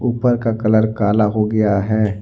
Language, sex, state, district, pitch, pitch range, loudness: Hindi, male, Jharkhand, Deoghar, 110 Hz, 105-115 Hz, -17 LUFS